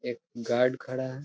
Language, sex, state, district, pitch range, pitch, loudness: Hindi, male, Bihar, Araria, 120-130 Hz, 125 Hz, -29 LUFS